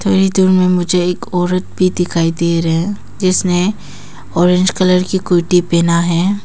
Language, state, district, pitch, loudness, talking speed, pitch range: Hindi, Arunachal Pradesh, Papum Pare, 180 Hz, -14 LUFS, 165 wpm, 175-185 Hz